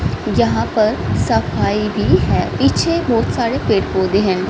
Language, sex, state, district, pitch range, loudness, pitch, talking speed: Hindi, female, Haryana, Rohtak, 190-230 Hz, -16 LUFS, 205 Hz, 145 wpm